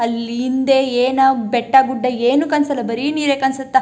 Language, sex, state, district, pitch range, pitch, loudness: Kannada, female, Karnataka, Chamarajanagar, 245-270 Hz, 265 Hz, -16 LUFS